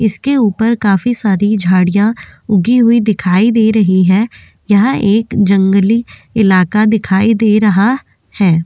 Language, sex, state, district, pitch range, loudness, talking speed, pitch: Hindi, female, Goa, North and South Goa, 195-225 Hz, -12 LUFS, 130 wpm, 210 Hz